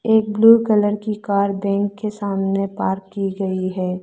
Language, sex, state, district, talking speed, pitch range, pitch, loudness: Hindi, female, Arunachal Pradesh, Lower Dibang Valley, 180 wpm, 195-210 Hz, 200 Hz, -19 LUFS